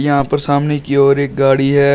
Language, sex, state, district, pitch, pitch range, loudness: Hindi, male, Uttar Pradesh, Shamli, 140 Hz, 140-145 Hz, -13 LUFS